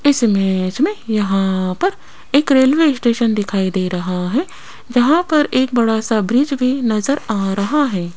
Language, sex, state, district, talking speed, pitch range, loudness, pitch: Hindi, female, Rajasthan, Jaipur, 170 wpm, 195-280 Hz, -16 LUFS, 230 Hz